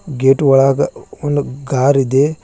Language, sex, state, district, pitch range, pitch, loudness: Kannada, male, Karnataka, Bidar, 135-145 Hz, 135 Hz, -14 LUFS